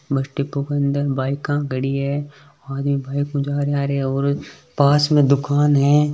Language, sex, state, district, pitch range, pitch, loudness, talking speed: Hindi, male, Rajasthan, Nagaur, 140-145 Hz, 140 Hz, -20 LUFS, 175 wpm